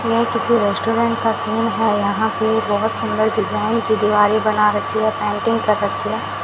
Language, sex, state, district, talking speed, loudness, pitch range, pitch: Hindi, female, Rajasthan, Bikaner, 185 wpm, -18 LUFS, 210-230 Hz, 225 Hz